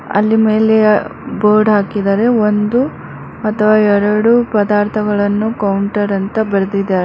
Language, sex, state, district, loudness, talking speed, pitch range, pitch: Kannada, female, Karnataka, Bangalore, -13 LUFS, 100 wpm, 205-220 Hz, 210 Hz